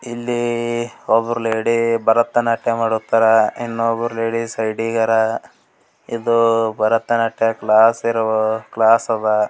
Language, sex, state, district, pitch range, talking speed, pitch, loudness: Kannada, male, Karnataka, Gulbarga, 110-115 Hz, 90 wpm, 115 Hz, -17 LUFS